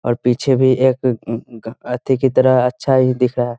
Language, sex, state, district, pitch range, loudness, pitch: Hindi, male, Bihar, Muzaffarpur, 120-130 Hz, -16 LUFS, 125 Hz